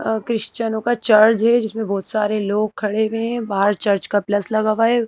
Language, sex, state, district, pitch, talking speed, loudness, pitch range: Hindi, female, Madhya Pradesh, Bhopal, 220 Hz, 225 wpm, -18 LUFS, 210-225 Hz